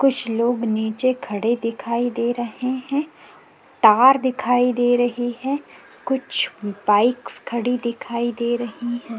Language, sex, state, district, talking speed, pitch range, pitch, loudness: Hindi, female, Chhattisgarh, Korba, 130 wpm, 235-255 Hz, 240 Hz, -21 LUFS